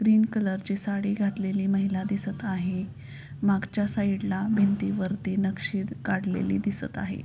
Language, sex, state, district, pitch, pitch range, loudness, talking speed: Marathi, female, Maharashtra, Pune, 195 Hz, 190-205 Hz, -27 LUFS, 135 wpm